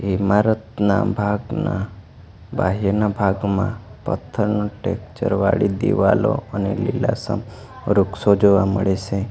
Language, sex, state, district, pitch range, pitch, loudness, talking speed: Gujarati, male, Gujarat, Valsad, 100-105 Hz, 100 Hz, -20 LUFS, 90 wpm